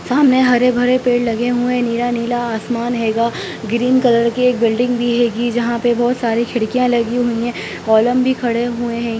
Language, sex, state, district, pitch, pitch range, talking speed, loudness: Hindi, female, Bihar, Sitamarhi, 240 Hz, 235-245 Hz, 180 wpm, -16 LUFS